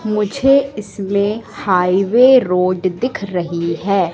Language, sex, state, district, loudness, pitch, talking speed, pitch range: Hindi, female, Madhya Pradesh, Katni, -15 LUFS, 200 Hz, 100 wpm, 185-230 Hz